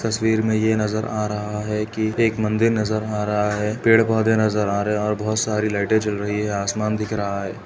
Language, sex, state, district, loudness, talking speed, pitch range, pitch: Hindi, male, Uttar Pradesh, Etah, -21 LUFS, 245 wpm, 105-110 Hz, 105 Hz